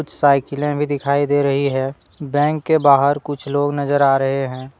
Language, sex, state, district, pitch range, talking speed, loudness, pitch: Hindi, male, Jharkhand, Deoghar, 140-145 Hz, 190 wpm, -18 LUFS, 140 Hz